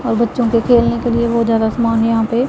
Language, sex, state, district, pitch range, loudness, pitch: Hindi, female, Punjab, Pathankot, 230-235 Hz, -15 LUFS, 235 Hz